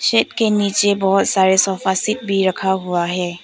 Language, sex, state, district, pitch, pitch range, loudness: Hindi, female, Arunachal Pradesh, Papum Pare, 195 Hz, 190-205 Hz, -17 LUFS